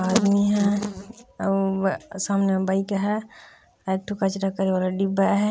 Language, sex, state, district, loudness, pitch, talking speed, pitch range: Chhattisgarhi, female, Chhattisgarh, Raigarh, -23 LUFS, 195 Hz, 140 wpm, 195-205 Hz